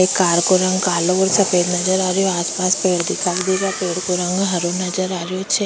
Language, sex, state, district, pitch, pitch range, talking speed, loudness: Rajasthani, female, Rajasthan, Churu, 185 Hz, 180-190 Hz, 255 wpm, -17 LUFS